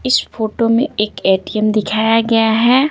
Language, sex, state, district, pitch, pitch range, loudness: Hindi, female, Bihar, Patna, 225 Hz, 215-235 Hz, -15 LUFS